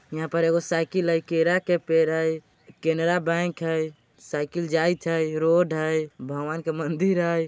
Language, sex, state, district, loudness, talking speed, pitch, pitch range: Bajjika, male, Bihar, Vaishali, -24 LUFS, 170 wpm, 165 Hz, 160-170 Hz